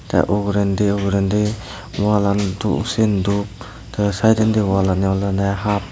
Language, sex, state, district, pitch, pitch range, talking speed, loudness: Chakma, male, Tripura, Dhalai, 100 Hz, 100-105 Hz, 110 wpm, -18 LUFS